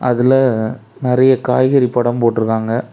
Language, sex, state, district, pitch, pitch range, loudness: Tamil, male, Tamil Nadu, Kanyakumari, 125 Hz, 115-130 Hz, -15 LUFS